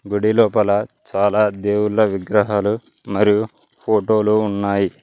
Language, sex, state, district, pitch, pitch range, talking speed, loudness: Telugu, male, Telangana, Mahabubabad, 105 Hz, 100-110 Hz, 95 wpm, -18 LUFS